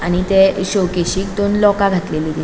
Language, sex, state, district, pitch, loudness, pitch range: Konkani, female, Goa, North and South Goa, 190 Hz, -15 LUFS, 175-195 Hz